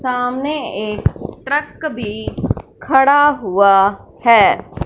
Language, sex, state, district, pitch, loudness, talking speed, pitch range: Hindi, female, Punjab, Fazilka, 245 Hz, -16 LUFS, 85 wpm, 210-290 Hz